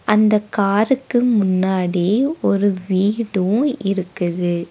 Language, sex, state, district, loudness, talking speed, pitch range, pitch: Tamil, female, Tamil Nadu, Nilgiris, -18 LUFS, 75 wpm, 185-215 Hz, 200 Hz